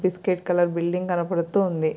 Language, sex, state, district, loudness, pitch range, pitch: Telugu, female, Andhra Pradesh, Srikakulam, -24 LUFS, 170-185 Hz, 180 Hz